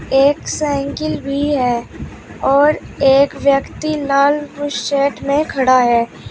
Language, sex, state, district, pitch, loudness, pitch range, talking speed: Hindi, female, Uttar Pradesh, Shamli, 280 Hz, -16 LUFS, 270-290 Hz, 115 wpm